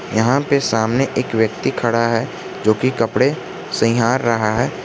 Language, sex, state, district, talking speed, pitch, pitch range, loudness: Hindi, male, Jharkhand, Garhwa, 160 wpm, 115 Hz, 110-130 Hz, -18 LUFS